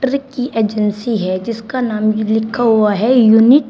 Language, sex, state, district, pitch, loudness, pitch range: Hindi, female, Uttar Pradesh, Shamli, 225 Hz, -14 LUFS, 215-255 Hz